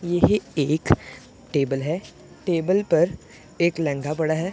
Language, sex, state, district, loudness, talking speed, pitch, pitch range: Hindi, male, Punjab, Pathankot, -23 LUFS, 135 wpm, 160 Hz, 140-175 Hz